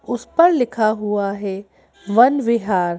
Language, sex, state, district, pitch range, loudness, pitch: Hindi, female, Madhya Pradesh, Bhopal, 200-240 Hz, -18 LUFS, 215 Hz